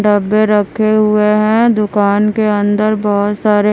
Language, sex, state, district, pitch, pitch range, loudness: Hindi, female, Bihar, Kaimur, 210 Hz, 205-215 Hz, -12 LUFS